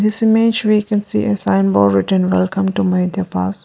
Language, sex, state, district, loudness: English, female, Arunachal Pradesh, Lower Dibang Valley, -15 LUFS